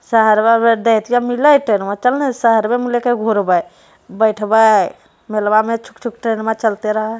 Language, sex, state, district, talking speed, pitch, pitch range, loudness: Hindi, female, Bihar, Jamui, 175 wpm, 225 Hz, 215-235 Hz, -15 LUFS